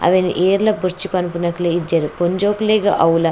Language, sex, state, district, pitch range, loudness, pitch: Tulu, female, Karnataka, Dakshina Kannada, 170-195 Hz, -17 LUFS, 180 Hz